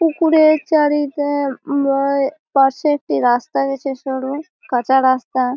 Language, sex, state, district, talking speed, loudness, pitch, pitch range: Bengali, female, West Bengal, Malda, 110 wpm, -17 LUFS, 275 Hz, 265-295 Hz